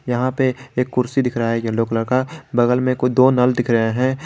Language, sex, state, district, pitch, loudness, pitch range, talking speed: Hindi, male, Jharkhand, Garhwa, 125 Hz, -18 LUFS, 120-130 Hz, 255 wpm